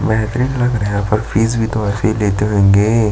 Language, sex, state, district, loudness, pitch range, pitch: Hindi, male, Chhattisgarh, Jashpur, -15 LUFS, 105-115 Hz, 110 Hz